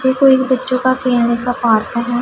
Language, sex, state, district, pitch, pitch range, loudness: Hindi, female, Punjab, Pathankot, 250 Hz, 240-260 Hz, -14 LUFS